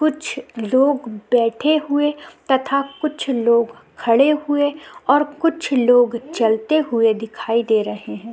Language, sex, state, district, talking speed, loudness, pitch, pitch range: Hindi, female, Uttarakhand, Tehri Garhwal, 130 wpm, -19 LUFS, 265 Hz, 230-295 Hz